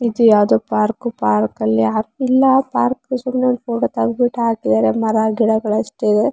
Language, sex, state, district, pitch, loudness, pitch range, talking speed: Kannada, female, Karnataka, Shimoga, 220 Hz, -17 LUFS, 210-245 Hz, 160 wpm